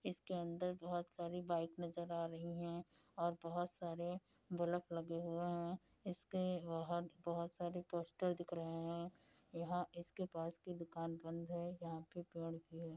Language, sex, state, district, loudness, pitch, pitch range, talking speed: Hindi, female, Uttar Pradesh, Budaun, -46 LUFS, 170 Hz, 170-175 Hz, 170 wpm